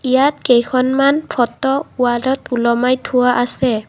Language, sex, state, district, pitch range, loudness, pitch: Assamese, female, Assam, Kamrup Metropolitan, 245-265 Hz, -16 LUFS, 255 Hz